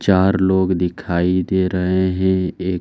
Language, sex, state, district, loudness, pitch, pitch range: Hindi, male, Bihar, Saran, -18 LUFS, 95 Hz, 90-95 Hz